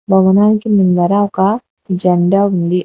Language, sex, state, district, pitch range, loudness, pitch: Telugu, female, Telangana, Hyderabad, 180-200 Hz, -13 LUFS, 190 Hz